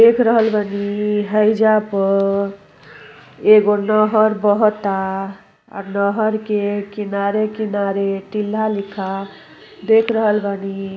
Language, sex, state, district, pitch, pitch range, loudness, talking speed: Bhojpuri, female, Uttar Pradesh, Gorakhpur, 205 Hz, 200-215 Hz, -17 LUFS, 85 wpm